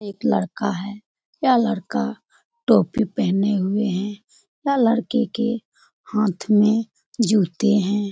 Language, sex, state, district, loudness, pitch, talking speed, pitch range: Hindi, female, Bihar, Jamui, -21 LUFS, 215 Hz, 120 wpm, 200-235 Hz